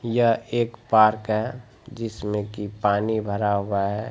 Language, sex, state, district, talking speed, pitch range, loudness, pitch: Hindi, male, Bihar, Saharsa, 145 wpm, 105-115 Hz, -23 LUFS, 110 Hz